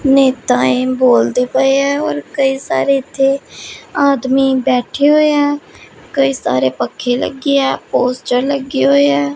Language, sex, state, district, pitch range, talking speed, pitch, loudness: Punjabi, female, Punjab, Pathankot, 245-275 Hz, 140 wpm, 265 Hz, -14 LUFS